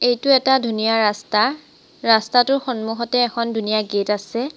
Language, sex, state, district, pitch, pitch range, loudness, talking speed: Assamese, female, Assam, Sonitpur, 235 Hz, 220-255 Hz, -19 LUFS, 130 wpm